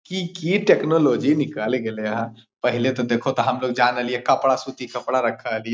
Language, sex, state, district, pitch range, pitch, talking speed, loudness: Magahi, male, Bihar, Lakhisarai, 120-135 Hz, 125 Hz, 190 wpm, -21 LUFS